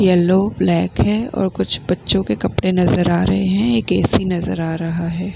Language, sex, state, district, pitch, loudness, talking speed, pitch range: Hindi, female, Bihar, Vaishali, 180 Hz, -17 LUFS, 190 wpm, 170-190 Hz